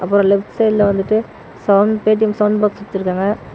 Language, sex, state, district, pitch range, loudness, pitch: Tamil, male, Tamil Nadu, Namakkal, 200-215 Hz, -16 LUFS, 205 Hz